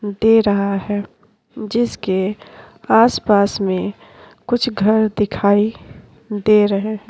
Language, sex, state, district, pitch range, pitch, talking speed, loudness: Hindi, female, Uttarakhand, Tehri Garhwal, 200-220 Hz, 210 Hz, 100 wpm, -17 LUFS